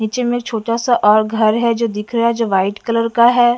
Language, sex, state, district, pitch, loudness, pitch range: Hindi, female, Bihar, West Champaran, 230 Hz, -15 LUFS, 215-235 Hz